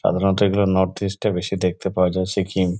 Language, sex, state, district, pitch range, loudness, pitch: Bengali, male, West Bengal, Kolkata, 90-100 Hz, -21 LUFS, 95 Hz